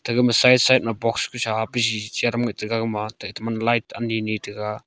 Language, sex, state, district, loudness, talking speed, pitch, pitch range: Wancho, male, Arunachal Pradesh, Longding, -21 LUFS, 210 wpm, 115 Hz, 110-120 Hz